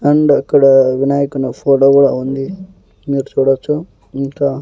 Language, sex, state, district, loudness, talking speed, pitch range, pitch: Telugu, male, Andhra Pradesh, Annamaya, -13 LUFS, 115 wpm, 135-145 Hz, 135 Hz